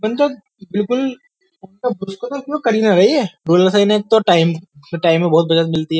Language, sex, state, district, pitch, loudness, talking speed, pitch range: Hindi, male, Uttar Pradesh, Jyotiba Phule Nagar, 200 Hz, -16 LUFS, 170 wpm, 170-245 Hz